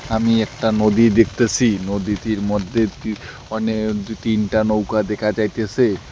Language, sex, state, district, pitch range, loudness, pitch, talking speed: Bengali, male, West Bengal, Alipurduar, 105-115 Hz, -19 LUFS, 110 Hz, 110 wpm